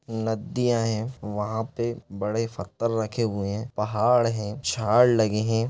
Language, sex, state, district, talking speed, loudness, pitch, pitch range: Hindi, male, Chhattisgarh, Balrampur, 145 wpm, -25 LUFS, 115 Hz, 105-120 Hz